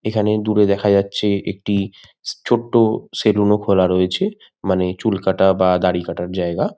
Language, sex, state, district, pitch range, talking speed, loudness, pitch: Bengali, male, West Bengal, Malda, 95-105 Hz, 150 wpm, -18 LUFS, 100 Hz